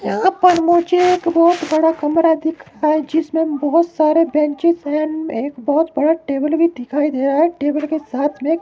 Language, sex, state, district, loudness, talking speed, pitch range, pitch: Hindi, male, Himachal Pradesh, Shimla, -16 LUFS, 210 wpm, 295-330 Hz, 315 Hz